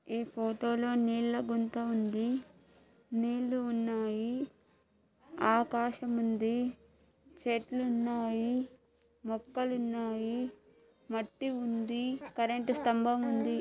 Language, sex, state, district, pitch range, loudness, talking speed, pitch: Telugu, female, Andhra Pradesh, Anantapur, 230-245 Hz, -34 LUFS, 75 wpm, 235 Hz